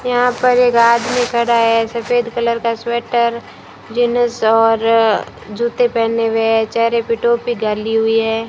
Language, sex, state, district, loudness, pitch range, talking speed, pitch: Hindi, female, Rajasthan, Bikaner, -15 LUFS, 225-240 Hz, 155 wpm, 235 Hz